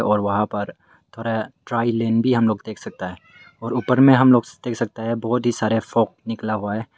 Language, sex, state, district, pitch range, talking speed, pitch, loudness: Hindi, male, Meghalaya, West Garo Hills, 110-120 Hz, 225 wpm, 115 Hz, -20 LUFS